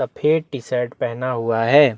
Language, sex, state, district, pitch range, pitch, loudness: Hindi, male, Chhattisgarh, Bastar, 115-145 Hz, 130 Hz, -20 LUFS